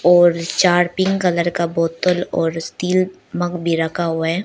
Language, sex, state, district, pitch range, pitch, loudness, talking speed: Hindi, female, Arunachal Pradesh, Lower Dibang Valley, 165-180 Hz, 175 Hz, -18 LUFS, 175 wpm